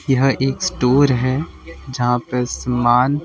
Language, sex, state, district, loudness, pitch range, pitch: Hindi, male, Delhi, New Delhi, -18 LUFS, 125-135 Hz, 130 Hz